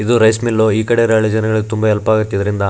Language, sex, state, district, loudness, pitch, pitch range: Kannada, male, Karnataka, Raichur, -14 LUFS, 110 Hz, 105-110 Hz